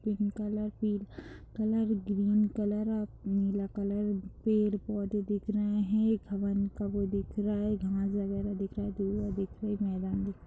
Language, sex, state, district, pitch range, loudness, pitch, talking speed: Hindi, female, Uttar Pradesh, Deoria, 200-210 Hz, -32 LUFS, 205 Hz, 190 wpm